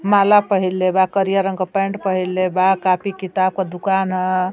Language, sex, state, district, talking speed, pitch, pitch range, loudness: Bhojpuri, female, Uttar Pradesh, Ghazipur, 185 wpm, 190 Hz, 185-195 Hz, -18 LUFS